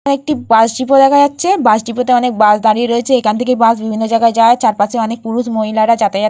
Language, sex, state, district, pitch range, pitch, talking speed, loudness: Bengali, female, West Bengal, Purulia, 220-255 Hz, 230 Hz, 240 wpm, -12 LUFS